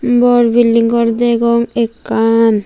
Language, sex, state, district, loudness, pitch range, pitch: Chakma, female, Tripura, Unakoti, -12 LUFS, 230-240 Hz, 235 Hz